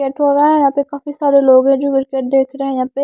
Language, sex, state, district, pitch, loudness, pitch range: Hindi, female, Punjab, Kapurthala, 275 Hz, -14 LUFS, 270-285 Hz